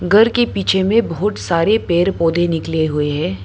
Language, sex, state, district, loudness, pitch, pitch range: Hindi, female, Arunachal Pradesh, Lower Dibang Valley, -16 LUFS, 175 Hz, 165-210 Hz